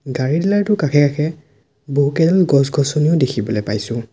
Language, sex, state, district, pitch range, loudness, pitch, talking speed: Assamese, male, Assam, Sonitpur, 130-155 Hz, -17 LUFS, 145 Hz, 145 wpm